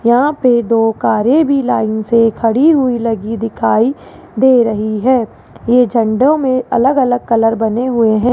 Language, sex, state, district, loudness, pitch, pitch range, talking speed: Hindi, female, Rajasthan, Jaipur, -13 LUFS, 235 Hz, 225-255 Hz, 165 wpm